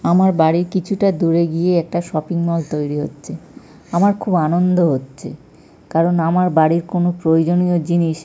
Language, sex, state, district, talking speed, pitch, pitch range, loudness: Bengali, male, West Bengal, North 24 Parganas, 155 wpm, 170 Hz, 165-180 Hz, -17 LUFS